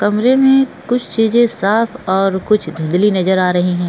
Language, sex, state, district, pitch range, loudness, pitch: Hindi, female, Goa, North and South Goa, 185-235 Hz, -14 LUFS, 205 Hz